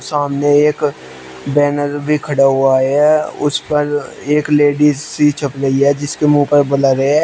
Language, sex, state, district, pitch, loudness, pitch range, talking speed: Hindi, male, Uttar Pradesh, Shamli, 145 Hz, -14 LUFS, 140-150 Hz, 165 wpm